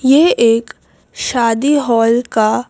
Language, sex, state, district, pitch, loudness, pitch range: Hindi, female, Madhya Pradesh, Bhopal, 235 Hz, -13 LUFS, 225-265 Hz